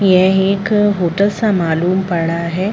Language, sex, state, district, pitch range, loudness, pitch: Hindi, female, Bihar, Madhepura, 175-200 Hz, -15 LUFS, 190 Hz